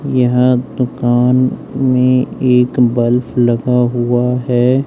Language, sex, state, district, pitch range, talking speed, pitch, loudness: Hindi, male, Madhya Pradesh, Dhar, 120-125 Hz, 100 wpm, 125 Hz, -13 LUFS